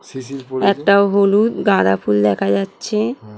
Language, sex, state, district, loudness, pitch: Bengali, female, West Bengal, Kolkata, -16 LUFS, 135 Hz